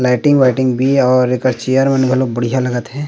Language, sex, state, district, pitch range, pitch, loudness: Chhattisgarhi, male, Chhattisgarh, Rajnandgaon, 125-135 Hz, 130 Hz, -14 LUFS